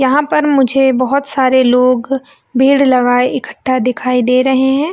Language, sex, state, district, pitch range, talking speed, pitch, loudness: Hindi, female, Chhattisgarh, Bilaspur, 255-275 Hz, 160 wpm, 260 Hz, -12 LUFS